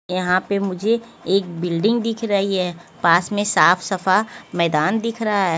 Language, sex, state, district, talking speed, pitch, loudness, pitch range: Hindi, female, Haryana, Jhajjar, 170 wpm, 195 Hz, -19 LUFS, 180-215 Hz